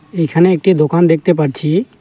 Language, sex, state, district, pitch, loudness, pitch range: Bengali, male, West Bengal, Alipurduar, 165 Hz, -13 LUFS, 155-180 Hz